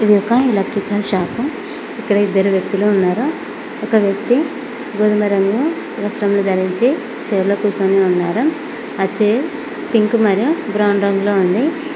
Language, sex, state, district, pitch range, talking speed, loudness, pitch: Telugu, female, Telangana, Mahabubabad, 195-250 Hz, 125 wpm, -16 LUFS, 210 Hz